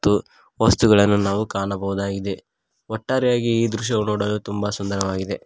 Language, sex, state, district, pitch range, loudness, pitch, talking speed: Kannada, male, Karnataka, Koppal, 100-110 Hz, -21 LUFS, 105 Hz, 110 wpm